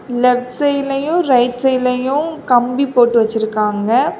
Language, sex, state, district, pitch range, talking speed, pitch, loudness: Tamil, female, Tamil Nadu, Kanyakumari, 240-275 Hz, 100 wpm, 250 Hz, -15 LUFS